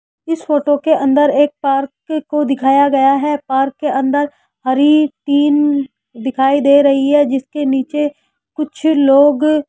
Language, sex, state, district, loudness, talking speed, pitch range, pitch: Hindi, male, Rajasthan, Jaipur, -14 LUFS, 150 wpm, 275-295 Hz, 285 Hz